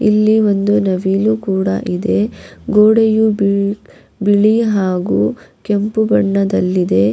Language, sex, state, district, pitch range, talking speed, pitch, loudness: Kannada, female, Karnataka, Raichur, 185-215 Hz, 95 wpm, 205 Hz, -14 LUFS